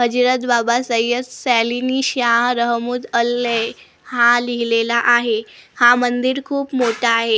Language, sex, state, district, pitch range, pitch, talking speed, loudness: Marathi, female, Maharashtra, Gondia, 235-250 Hz, 240 Hz, 140 wpm, -17 LUFS